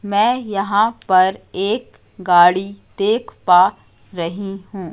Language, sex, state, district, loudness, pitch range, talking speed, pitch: Hindi, female, Madhya Pradesh, Katni, -17 LUFS, 185-210 Hz, 110 wpm, 195 Hz